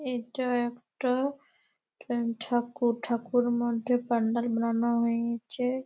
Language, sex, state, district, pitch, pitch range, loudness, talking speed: Bengali, female, West Bengal, Malda, 240 Hz, 235-250 Hz, -29 LUFS, 80 wpm